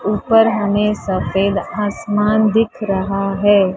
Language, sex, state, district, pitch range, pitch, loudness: Hindi, female, Maharashtra, Mumbai Suburban, 195-215 Hz, 205 Hz, -16 LUFS